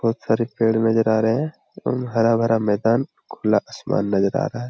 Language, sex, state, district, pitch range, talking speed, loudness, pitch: Hindi, male, Jharkhand, Jamtara, 110-120 Hz, 215 wpm, -21 LUFS, 115 Hz